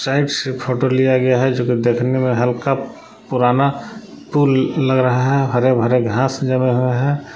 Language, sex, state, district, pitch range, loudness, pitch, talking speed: Hindi, male, Jharkhand, Palamu, 125-135 Hz, -17 LUFS, 130 Hz, 180 wpm